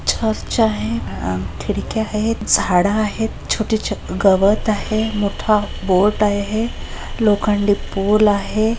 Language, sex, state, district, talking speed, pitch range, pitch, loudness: Marathi, female, Maharashtra, Chandrapur, 110 wpm, 200-220 Hz, 210 Hz, -18 LUFS